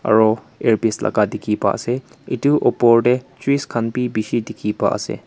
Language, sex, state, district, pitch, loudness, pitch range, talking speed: Nagamese, male, Nagaland, Kohima, 115 Hz, -19 LUFS, 110-125 Hz, 180 wpm